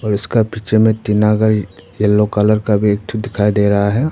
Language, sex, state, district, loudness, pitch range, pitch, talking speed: Hindi, male, Arunachal Pradesh, Papum Pare, -15 LUFS, 105-110 Hz, 105 Hz, 235 wpm